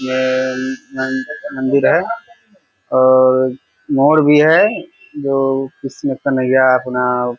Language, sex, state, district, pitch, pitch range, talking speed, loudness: Hindi, male, Bihar, Purnia, 130 Hz, 130-140 Hz, 115 wpm, -15 LUFS